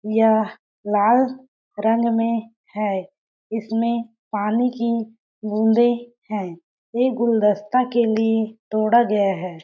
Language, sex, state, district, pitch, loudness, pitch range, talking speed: Hindi, female, Chhattisgarh, Balrampur, 225 Hz, -21 LUFS, 210-235 Hz, 105 wpm